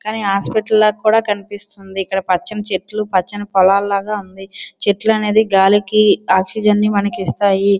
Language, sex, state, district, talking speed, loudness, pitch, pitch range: Telugu, female, Andhra Pradesh, Srikakulam, 125 wpm, -16 LUFS, 200 Hz, 195-215 Hz